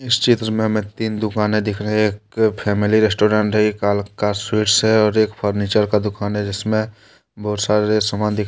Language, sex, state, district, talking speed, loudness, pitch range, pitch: Hindi, male, Jharkhand, Deoghar, 200 wpm, -18 LUFS, 105-110 Hz, 105 Hz